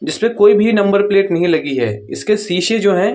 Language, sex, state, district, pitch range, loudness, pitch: Hindi, male, Uttar Pradesh, Muzaffarnagar, 175-210 Hz, -14 LUFS, 200 Hz